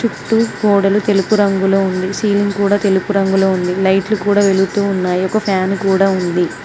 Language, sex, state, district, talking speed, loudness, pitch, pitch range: Telugu, female, Telangana, Mahabubabad, 160 wpm, -14 LUFS, 195 Hz, 190-205 Hz